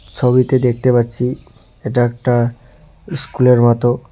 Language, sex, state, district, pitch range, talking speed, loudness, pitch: Bengali, male, West Bengal, Cooch Behar, 120-130 Hz, 100 wpm, -15 LUFS, 125 Hz